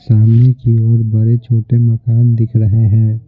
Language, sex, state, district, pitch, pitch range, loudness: Hindi, male, Bihar, Patna, 115 Hz, 110-120 Hz, -12 LUFS